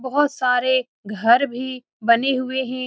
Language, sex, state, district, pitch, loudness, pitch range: Hindi, female, Bihar, Saran, 255 Hz, -20 LUFS, 245-260 Hz